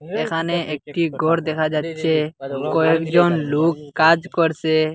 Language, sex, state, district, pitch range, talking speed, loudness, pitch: Bengali, male, Assam, Hailakandi, 155-165 Hz, 120 wpm, -19 LUFS, 160 Hz